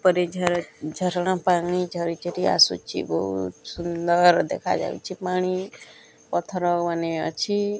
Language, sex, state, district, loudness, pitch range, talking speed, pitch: Odia, male, Odisha, Nuapada, -24 LUFS, 170-185 Hz, 110 wpm, 175 Hz